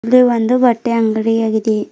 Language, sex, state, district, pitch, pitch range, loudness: Kannada, female, Karnataka, Bidar, 225 Hz, 220-240 Hz, -14 LUFS